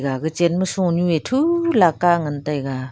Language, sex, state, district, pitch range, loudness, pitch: Wancho, female, Arunachal Pradesh, Longding, 145-185 Hz, -19 LUFS, 170 Hz